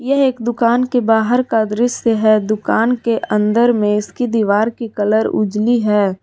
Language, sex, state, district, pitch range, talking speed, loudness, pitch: Hindi, female, Jharkhand, Garhwa, 210-240 Hz, 175 wpm, -15 LUFS, 225 Hz